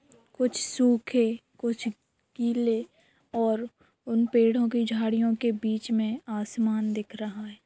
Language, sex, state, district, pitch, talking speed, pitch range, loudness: Hindi, female, Jharkhand, Sahebganj, 230 Hz, 125 wpm, 220-235 Hz, -27 LUFS